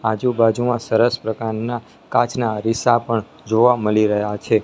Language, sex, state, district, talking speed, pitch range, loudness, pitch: Gujarati, male, Gujarat, Gandhinagar, 140 wpm, 110-120 Hz, -19 LUFS, 115 Hz